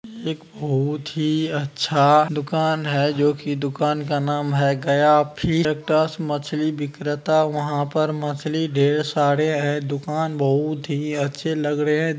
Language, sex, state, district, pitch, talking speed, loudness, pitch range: Magahi, male, Bihar, Gaya, 150 Hz, 155 wpm, -21 LUFS, 145-155 Hz